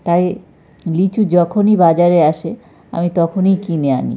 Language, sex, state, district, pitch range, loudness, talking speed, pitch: Bengali, male, West Bengal, North 24 Parganas, 165-190 Hz, -14 LUFS, 130 wpm, 175 Hz